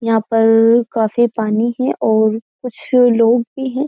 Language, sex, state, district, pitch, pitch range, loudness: Hindi, female, Uttar Pradesh, Jyotiba Phule Nagar, 230 Hz, 225-245 Hz, -15 LUFS